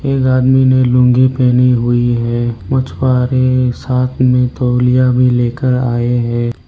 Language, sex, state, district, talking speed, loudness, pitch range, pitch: Hindi, male, Arunachal Pradesh, Lower Dibang Valley, 135 wpm, -13 LUFS, 120-130 Hz, 125 Hz